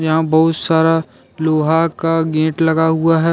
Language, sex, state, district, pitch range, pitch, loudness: Hindi, male, Jharkhand, Deoghar, 160-165 Hz, 160 Hz, -15 LUFS